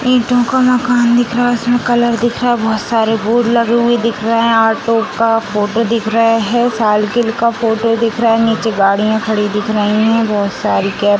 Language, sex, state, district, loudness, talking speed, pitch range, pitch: Hindi, female, Bihar, Sitamarhi, -13 LUFS, 220 wpm, 220-240 Hz, 230 Hz